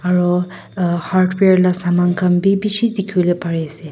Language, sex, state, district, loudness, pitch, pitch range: Nagamese, female, Nagaland, Kohima, -16 LUFS, 180 Hz, 175-185 Hz